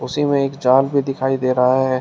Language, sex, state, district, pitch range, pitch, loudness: Hindi, male, Uttar Pradesh, Shamli, 130-140 Hz, 135 Hz, -17 LUFS